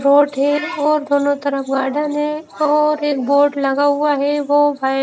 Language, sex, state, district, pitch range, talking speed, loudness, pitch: Hindi, female, Haryana, Rohtak, 280-295 Hz, 165 wpm, -17 LUFS, 290 Hz